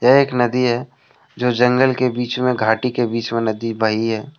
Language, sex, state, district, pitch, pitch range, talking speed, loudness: Hindi, male, Jharkhand, Deoghar, 120 Hz, 115-125 Hz, 220 wpm, -18 LUFS